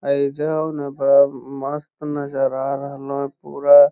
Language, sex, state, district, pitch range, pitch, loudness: Magahi, male, Bihar, Lakhisarai, 140-150 Hz, 140 Hz, -20 LUFS